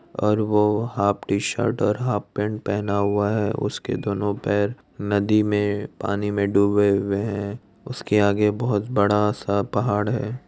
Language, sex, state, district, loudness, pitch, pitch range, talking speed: Hindi, male, Bihar, Madhepura, -22 LUFS, 105 Hz, 100-105 Hz, 155 wpm